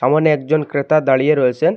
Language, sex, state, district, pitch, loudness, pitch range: Bengali, male, Assam, Hailakandi, 150 Hz, -15 LUFS, 140-155 Hz